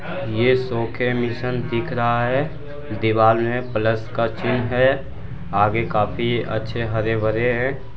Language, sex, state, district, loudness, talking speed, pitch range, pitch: Hindi, male, Bihar, Jamui, -21 LUFS, 145 wpm, 110-125 Hz, 120 Hz